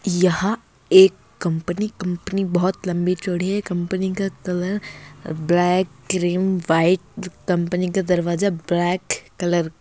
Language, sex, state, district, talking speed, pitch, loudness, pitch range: Hindi, female, Bihar, Bhagalpur, 115 wpm, 180 Hz, -21 LUFS, 175-190 Hz